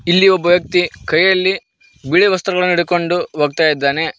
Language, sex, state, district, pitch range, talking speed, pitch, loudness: Kannada, male, Karnataka, Koppal, 160-185 Hz, 115 wpm, 175 Hz, -14 LUFS